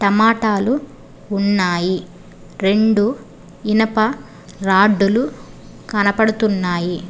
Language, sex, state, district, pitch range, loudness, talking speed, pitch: Telugu, female, Telangana, Hyderabad, 185-220 Hz, -17 LUFS, 60 wpm, 205 Hz